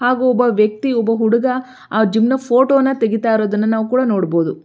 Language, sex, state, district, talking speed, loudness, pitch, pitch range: Kannada, female, Karnataka, Belgaum, 180 wpm, -16 LUFS, 230 Hz, 220-255 Hz